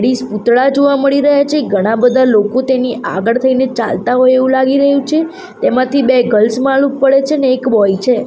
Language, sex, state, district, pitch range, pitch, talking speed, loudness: Gujarati, female, Gujarat, Gandhinagar, 240-275 Hz, 255 Hz, 195 wpm, -12 LUFS